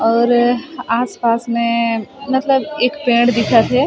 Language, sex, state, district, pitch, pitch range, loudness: Chhattisgarhi, female, Chhattisgarh, Sarguja, 240 Hz, 230-260 Hz, -16 LUFS